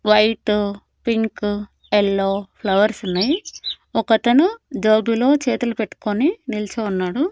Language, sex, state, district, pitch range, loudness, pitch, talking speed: Telugu, female, Andhra Pradesh, Annamaya, 205-240 Hz, -20 LUFS, 220 Hz, 80 wpm